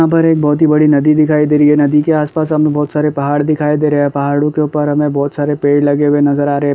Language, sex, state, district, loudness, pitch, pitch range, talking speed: Hindi, male, Bihar, Gaya, -12 LUFS, 150 Hz, 145-150 Hz, 310 wpm